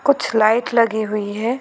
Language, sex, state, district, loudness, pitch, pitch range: Hindi, female, West Bengal, Alipurduar, -18 LUFS, 225 Hz, 215-240 Hz